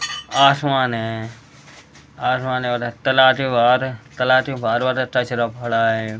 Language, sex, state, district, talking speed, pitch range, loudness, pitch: Hindi, male, Uttar Pradesh, Deoria, 125 wpm, 120-130 Hz, -18 LUFS, 125 Hz